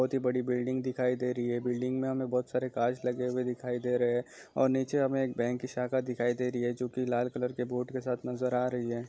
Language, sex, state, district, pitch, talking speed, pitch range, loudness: Hindi, male, Andhra Pradesh, Chittoor, 125 Hz, 275 wpm, 125-130 Hz, -32 LUFS